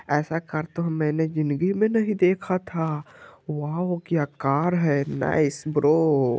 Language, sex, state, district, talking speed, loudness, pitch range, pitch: Hindi, male, Bihar, Vaishali, 160 wpm, -24 LUFS, 150-175 Hz, 160 Hz